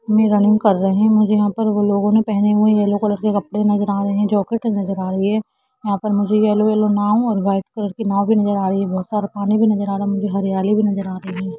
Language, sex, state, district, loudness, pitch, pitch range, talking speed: Hindi, female, Jharkhand, Jamtara, -17 LUFS, 205 Hz, 200-215 Hz, 285 wpm